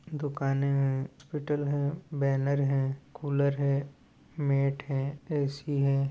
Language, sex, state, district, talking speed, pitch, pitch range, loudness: Hindi, male, Rajasthan, Nagaur, 120 wpm, 140 Hz, 140-145 Hz, -30 LUFS